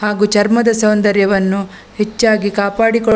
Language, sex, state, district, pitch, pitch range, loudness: Kannada, female, Karnataka, Dakshina Kannada, 210 Hz, 200-220 Hz, -14 LUFS